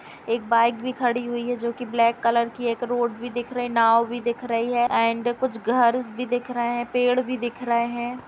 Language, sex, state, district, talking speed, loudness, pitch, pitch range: Hindi, female, Uttar Pradesh, Jalaun, 240 wpm, -23 LUFS, 240 Hz, 235-245 Hz